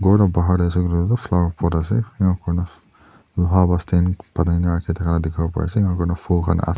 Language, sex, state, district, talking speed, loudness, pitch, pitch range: Nagamese, male, Nagaland, Dimapur, 230 wpm, -20 LUFS, 90 Hz, 85-90 Hz